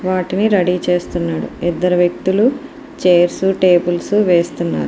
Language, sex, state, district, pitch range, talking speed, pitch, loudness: Telugu, female, Andhra Pradesh, Srikakulam, 175-195 Hz, 110 wpm, 180 Hz, -15 LUFS